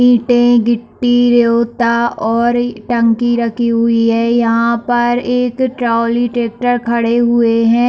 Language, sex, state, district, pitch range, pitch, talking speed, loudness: Hindi, female, Chhattisgarh, Bilaspur, 230-240 Hz, 235 Hz, 120 wpm, -13 LUFS